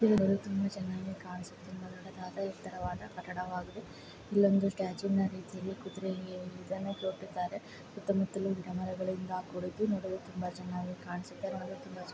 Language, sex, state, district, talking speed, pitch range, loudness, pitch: Kannada, female, Karnataka, Chamarajanagar, 110 wpm, 180-195 Hz, -36 LUFS, 185 Hz